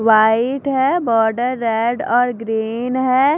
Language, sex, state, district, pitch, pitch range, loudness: Hindi, female, Punjab, Fazilka, 240 Hz, 225-255 Hz, -17 LUFS